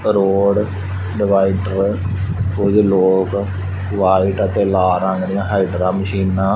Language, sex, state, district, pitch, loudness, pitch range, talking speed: Punjabi, male, Punjab, Fazilka, 95 Hz, -17 LUFS, 95-100 Hz, 100 wpm